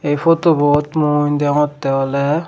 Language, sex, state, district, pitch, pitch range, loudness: Chakma, male, Tripura, Dhalai, 145 Hz, 145-155 Hz, -16 LUFS